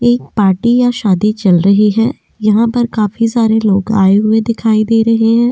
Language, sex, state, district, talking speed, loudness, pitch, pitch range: Hindi, female, Delhi, New Delhi, 195 wpm, -12 LUFS, 220 Hz, 210-230 Hz